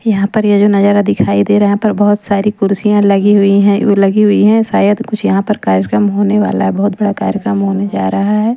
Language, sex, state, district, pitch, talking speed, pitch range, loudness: Hindi, female, Maharashtra, Gondia, 205 Hz, 245 wpm, 195-210 Hz, -11 LUFS